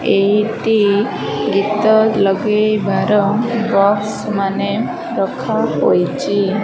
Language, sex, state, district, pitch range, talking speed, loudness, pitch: Odia, female, Odisha, Malkangiri, 200-220 Hz, 55 wpm, -16 LUFS, 210 Hz